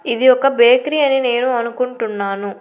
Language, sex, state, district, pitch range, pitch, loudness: Telugu, female, Andhra Pradesh, Annamaya, 235-255 Hz, 245 Hz, -15 LUFS